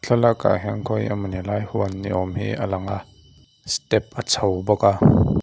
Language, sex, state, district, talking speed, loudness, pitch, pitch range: Mizo, male, Mizoram, Aizawl, 190 wpm, -22 LUFS, 100 Hz, 95-105 Hz